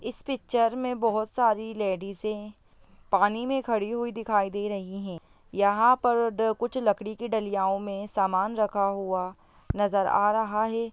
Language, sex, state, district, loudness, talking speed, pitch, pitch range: Hindi, female, Bihar, Begusarai, -27 LUFS, 155 wpm, 210 Hz, 195-230 Hz